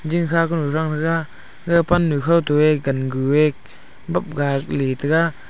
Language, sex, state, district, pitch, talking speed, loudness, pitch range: Wancho, male, Arunachal Pradesh, Longding, 150 Hz, 155 wpm, -19 LUFS, 140-165 Hz